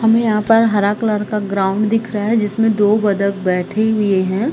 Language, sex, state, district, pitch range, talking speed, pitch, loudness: Hindi, female, Chhattisgarh, Bilaspur, 200-220 Hz, 210 wpm, 210 Hz, -16 LUFS